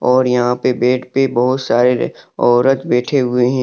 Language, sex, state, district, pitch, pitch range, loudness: Hindi, male, Jharkhand, Deoghar, 125 Hz, 125-130 Hz, -15 LUFS